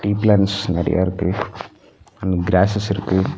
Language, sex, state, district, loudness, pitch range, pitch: Tamil, male, Tamil Nadu, Nilgiris, -19 LUFS, 95-105 Hz, 100 Hz